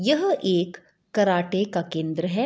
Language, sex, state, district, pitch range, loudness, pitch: Hindi, female, Bihar, Madhepura, 175-205 Hz, -24 LUFS, 185 Hz